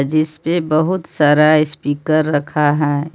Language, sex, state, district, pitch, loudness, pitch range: Hindi, female, Jharkhand, Palamu, 155 Hz, -16 LUFS, 145-155 Hz